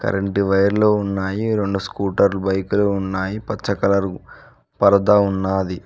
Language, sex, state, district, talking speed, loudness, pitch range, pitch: Telugu, male, Telangana, Mahabubabad, 125 wpm, -19 LUFS, 95-100 Hz, 100 Hz